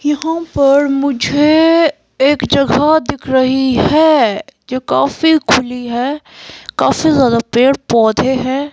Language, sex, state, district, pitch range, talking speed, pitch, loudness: Hindi, female, Himachal Pradesh, Shimla, 255-305 Hz, 115 wpm, 275 Hz, -13 LUFS